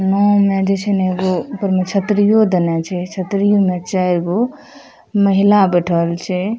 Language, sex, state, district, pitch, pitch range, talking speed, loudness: Maithili, female, Bihar, Madhepura, 195 Hz, 180-205 Hz, 175 wpm, -16 LUFS